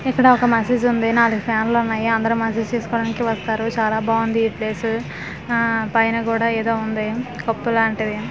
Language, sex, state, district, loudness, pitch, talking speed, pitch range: Telugu, female, Andhra Pradesh, Manyam, -19 LUFS, 225 Hz, 165 wpm, 225-230 Hz